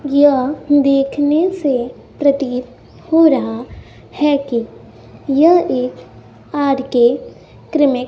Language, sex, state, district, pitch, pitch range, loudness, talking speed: Hindi, female, Bihar, West Champaran, 275 Hz, 250-290 Hz, -15 LUFS, 105 wpm